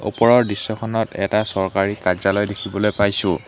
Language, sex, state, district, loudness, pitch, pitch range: Assamese, male, Assam, Hailakandi, -19 LUFS, 100 Hz, 95-110 Hz